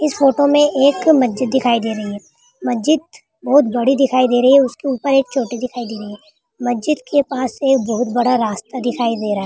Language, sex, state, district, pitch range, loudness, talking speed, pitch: Hindi, female, Rajasthan, Churu, 240-280 Hz, -16 LUFS, 220 wpm, 255 Hz